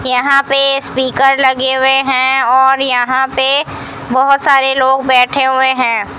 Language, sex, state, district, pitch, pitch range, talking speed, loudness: Hindi, female, Rajasthan, Bikaner, 265 Hz, 260-270 Hz, 145 wpm, -11 LUFS